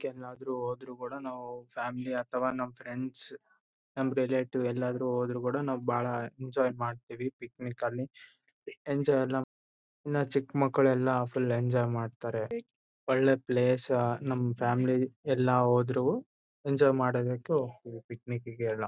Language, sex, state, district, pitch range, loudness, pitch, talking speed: Kannada, male, Karnataka, Bellary, 120-130 Hz, -31 LUFS, 125 Hz, 125 wpm